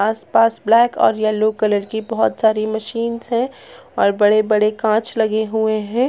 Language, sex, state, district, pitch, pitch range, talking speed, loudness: Bhojpuri, female, Bihar, Saran, 220 Hz, 215-230 Hz, 160 wpm, -17 LUFS